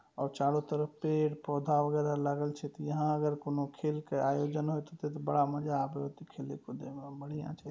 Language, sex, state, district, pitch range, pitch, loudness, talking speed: Maithili, male, Bihar, Saharsa, 140-150 Hz, 150 Hz, -34 LUFS, 210 wpm